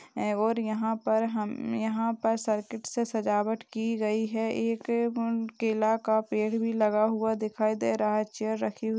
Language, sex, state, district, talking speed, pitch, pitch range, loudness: Hindi, female, Bihar, Madhepura, 180 wpm, 220 Hz, 215-230 Hz, -29 LUFS